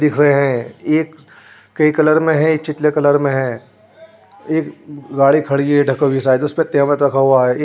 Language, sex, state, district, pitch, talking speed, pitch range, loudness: Hindi, male, Uttar Pradesh, Jyotiba Phule Nagar, 145 Hz, 210 wpm, 135-155 Hz, -15 LUFS